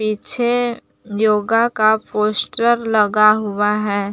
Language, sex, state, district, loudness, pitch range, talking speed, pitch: Hindi, female, Jharkhand, Palamu, -16 LUFS, 210-230 Hz, 100 wpm, 215 Hz